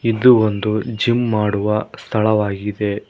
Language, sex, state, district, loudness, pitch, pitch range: Kannada, male, Karnataka, Koppal, -18 LUFS, 105 Hz, 105-115 Hz